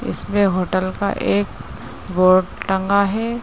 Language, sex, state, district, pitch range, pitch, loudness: Hindi, female, Uttar Pradesh, Ghazipur, 185-200 Hz, 185 Hz, -18 LUFS